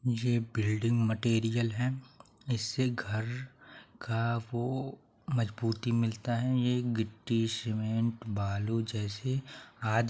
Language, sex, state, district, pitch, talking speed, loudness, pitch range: Hindi, male, Bihar, Saharsa, 115 Hz, 105 wpm, -32 LUFS, 110-125 Hz